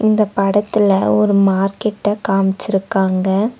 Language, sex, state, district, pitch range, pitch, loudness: Tamil, female, Tamil Nadu, Nilgiris, 195-210 Hz, 200 Hz, -16 LUFS